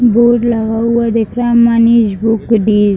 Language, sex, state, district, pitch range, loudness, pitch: Hindi, female, Bihar, Muzaffarpur, 220-235 Hz, -11 LUFS, 230 Hz